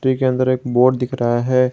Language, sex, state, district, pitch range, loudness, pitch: Hindi, male, Jharkhand, Garhwa, 125-130 Hz, -17 LUFS, 130 Hz